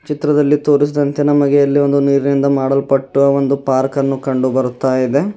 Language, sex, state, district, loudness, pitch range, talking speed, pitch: Kannada, male, Karnataka, Bidar, -14 LUFS, 135-145 Hz, 145 wpm, 140 Hz